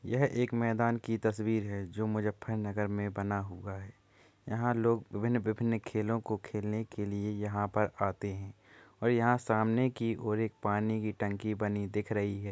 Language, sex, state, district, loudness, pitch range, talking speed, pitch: Hindi, male, Uttar Pradesh, Muzaffarnagar, -33 LUFS, 100-115 Hz, 180 wpm, 110 Hz